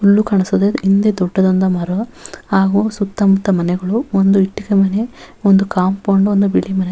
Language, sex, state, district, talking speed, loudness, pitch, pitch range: Kannada, female, Karnataka, Bellary, 140 wpm, -15 LUFS, 195 Hz, 190-205 Hz